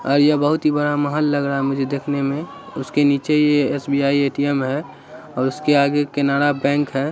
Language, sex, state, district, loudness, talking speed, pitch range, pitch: Hindi, male, Bihar, Saharsa, -19 LUFS, 200 wpm, 140-145 Hz, 145 Hz